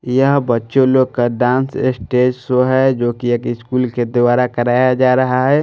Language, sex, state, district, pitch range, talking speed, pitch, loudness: Hindi, male, Bihar, Patna, 120-130 Hz, 190 wpm, 125 Hz, -15 LUFS